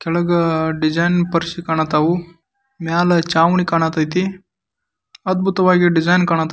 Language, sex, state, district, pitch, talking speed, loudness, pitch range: Kannada, male, Karnataka, Dharwad, 170 Hz, 120 wpm, -17 LUFS, 160-180 Hz